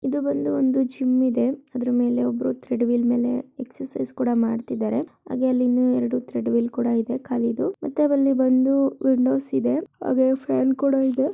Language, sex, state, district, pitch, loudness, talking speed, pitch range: Kannada, female, Karnataka, Shimoga, 255 Hz, -22 LUFS, 125 wpm, 240-265 Hz